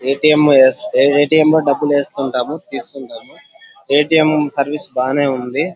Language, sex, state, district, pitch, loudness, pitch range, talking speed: Telugu, male, Andhra Pradesh, Anantapur, 145 Hz, -14 LUFS, 135-150 Hz, 175 wpm